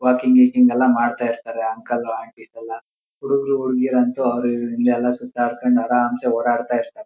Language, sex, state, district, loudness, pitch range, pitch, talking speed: Kannada, male, Karnataka, Shimoga, -19 LUFS, 120-125 Hz, 120 Hz, 160 wpm